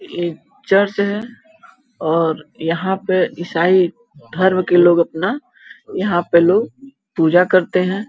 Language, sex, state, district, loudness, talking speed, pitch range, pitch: Hindi, female, Uttar Pradesh, Gorakhpur, -16 LUFS, 135 wpm, 170-200 Hz, 185 Hz